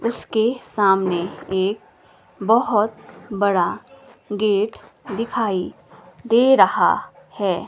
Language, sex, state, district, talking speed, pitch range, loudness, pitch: Hindi, female, Himachal Pradesh, Shimla, 80 wpm, 190-230 Hz, -20 LUFS, 210 Hz